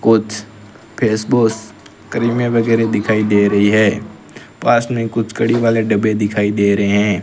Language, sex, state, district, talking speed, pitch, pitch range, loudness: Hindi, male, Rajasthan, Bikaner, 150 wpm, 110 Hz, 105-115 Hz, -15 LUFS